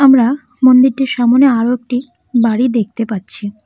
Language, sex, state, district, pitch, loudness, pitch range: Bengali, female, West Bengal, Cooch Behar, 245 Hz, -13 LUFS, 230-255 Hz